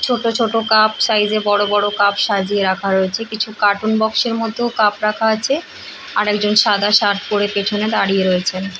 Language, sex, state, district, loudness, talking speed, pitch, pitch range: Bengali, female, West Bengal, Paschim Medinipur, -16 LUFS, 200 wpm, 210 Hz, 200-220 Hz